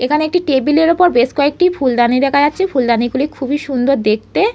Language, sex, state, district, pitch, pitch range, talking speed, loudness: Bengali, female, West Bengal, North 24 Parganas, 280 Hz, 255-310 Hz, 185 wpm, -14 LUFS